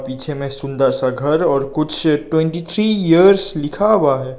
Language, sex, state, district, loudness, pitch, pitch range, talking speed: Hindi, male, Nagaland, Kohima, -15 LUFS, 150 Hz, 135-170 Hz, 175 wpm